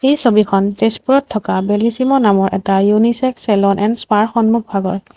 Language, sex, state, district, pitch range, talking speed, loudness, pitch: Assamese, female, Assam, Sonitpur, 200-235 Hz, 150 wpm, -14 LUFS, 215 Hz